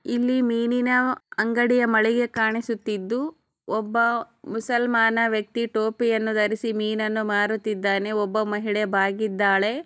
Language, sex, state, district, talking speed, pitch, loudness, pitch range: Kannada, female, Karnataka, Chamarajanagar, 90 wpm, 225 Hz, -23 LUFS, 215-235 Hz